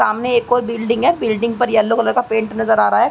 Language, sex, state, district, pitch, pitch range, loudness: Hindi, female, Uttar Pradesh, Gorakhpur, 230 Hz, 220-240 Hz, -16 LUFS